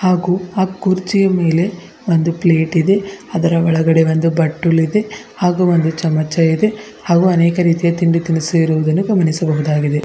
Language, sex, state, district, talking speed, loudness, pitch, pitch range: Kannada, female, Karnataka, Bidar, 135 wpm, -15 LUFS, 170 Hz, 160-185 Hz